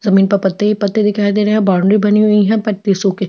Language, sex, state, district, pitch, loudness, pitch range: Hindi, female, Chhattisgarh, Jashpur, 205 Hz, -13 LUFS, 195-210 Hz